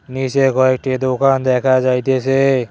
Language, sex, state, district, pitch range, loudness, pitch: Bengali, male, West Bengal, Cooch Behar, 130-135 Hz, -15 LUFS, 130 Hz